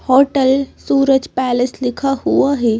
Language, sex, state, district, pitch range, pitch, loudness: Hindi, female, Madhya Pradesh, Bhopal, 255-275 Hz, 270 Hz, -15 LUFS